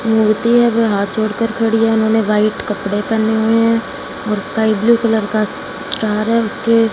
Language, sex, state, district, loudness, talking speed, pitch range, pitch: Hindi, female, Punjab, Fazilka, -15 LUFS, 180 wpm, 215-230 Hz, 220 Hz